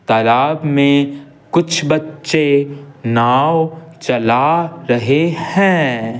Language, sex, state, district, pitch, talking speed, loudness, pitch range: Hindi, male, Bihar, Patna, 145 Hz, 75 wpm, -15 LUFS, 125-160 Hz